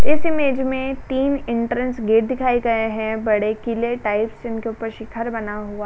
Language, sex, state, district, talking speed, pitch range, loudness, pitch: Hindi, female, Uttar Pradesh, Jalaun, 185 wpm, 220-255 Hz, -21 LUFS, 230 Hz